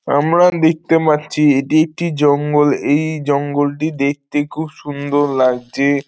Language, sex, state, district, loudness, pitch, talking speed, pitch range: Bengali, male, West Bengal, North 24 Parganas, -16 LUFS, 145 Hz, 130 wpm, 140-155 Hz